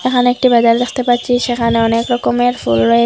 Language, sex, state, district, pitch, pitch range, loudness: Bengali, female, Assam, Hailakandi, 245 Hz, 230-245 Hz, -14 LUFS